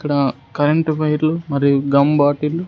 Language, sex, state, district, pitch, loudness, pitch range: Telugu, male, Andhra Pradesh, Sri Satya Sai, 145 Hz, -17 LUFS, 140-155 Hz